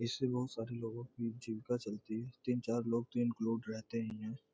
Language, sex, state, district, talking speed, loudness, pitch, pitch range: Hindi, male, Bihar, Gopalganj, 200 wpm, -40 LUFS, 115 Hz, 110-120 Hz